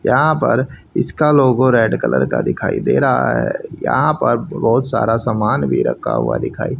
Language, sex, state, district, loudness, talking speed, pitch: Hindi, male, Haryana, Rohtak, -16 LUFS, 175 wpm, 115 Hz